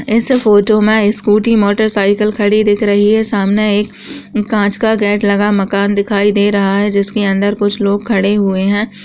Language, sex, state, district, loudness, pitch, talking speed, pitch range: Hindi, female, Uttar Pradesh, Muzaffarnagar, -12 LUFS, 205 Hz, 180 wpm, 200-215 Hz